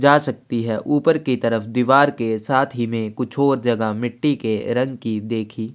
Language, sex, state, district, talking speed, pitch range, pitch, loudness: Hindi, male, Chhattisgarh, Kabirdham, 200 wpm, 110-135 Hz, 120 Hz, -20 LUFS